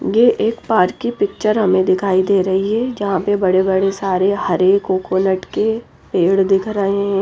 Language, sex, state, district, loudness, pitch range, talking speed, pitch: Hindi, female, Odisha, Nuapada, -16 LUFS, 190-210 Hz, 185 wpm, 195 Hz